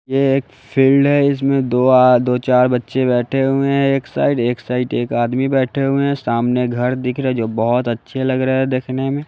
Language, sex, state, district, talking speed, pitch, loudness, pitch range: Hindi, male, Bihar, West Champaran, 220 wpm, 130 Hz, -16 LUFS, 125-135 Hz